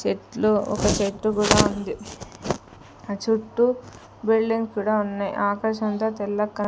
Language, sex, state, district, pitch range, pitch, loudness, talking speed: Telugu, female, Andhra Pradesh, Sri Satya Sai, 205-220 Hz, 215 Hz, -23 LUFS, 125 wpm